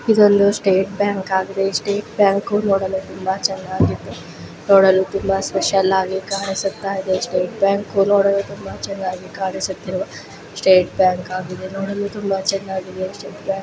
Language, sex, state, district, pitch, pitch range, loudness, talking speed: Kannada, female, Karnataka, Raichur, 195 Hz, 190-200 Hz, -19 LUFS, 130 wpm